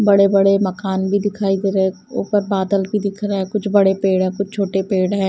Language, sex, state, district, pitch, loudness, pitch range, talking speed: Hindi, female, Punjab, Kapurthala, 195 Hz, -18 LUFS, 190-200 Hz, 250 wpm